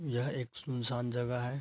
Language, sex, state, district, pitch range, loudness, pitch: Hindi, female, Bihar, Araria, 120-130 Hz, -36 LUFS, 125 Hz